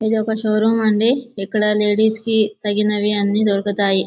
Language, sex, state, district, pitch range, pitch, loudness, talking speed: Telugu, male, Andhra Pradesh, Visakhapatnam, 205-220 Hz, 215 Hz, -17 LUFS, 145 wpm